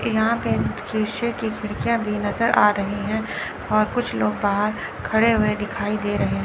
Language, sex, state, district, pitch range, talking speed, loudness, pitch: Hindi, female, Chandigarh, Chandigarh, 210-225 Hz, 185 wpm, -22 LUFS, 215 Hz